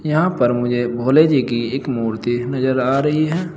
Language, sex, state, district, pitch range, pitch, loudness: Hindi, male, Uttar Pradesh, Saharanpur, 120-155 Hz, 130 Hz, -18 LUFS